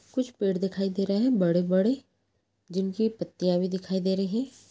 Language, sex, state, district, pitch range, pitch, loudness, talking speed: Hindi, female, Chhattisgarh, Balrampur, 190-220 Hz, 195 Hz, -27 LUFS, 190 wpm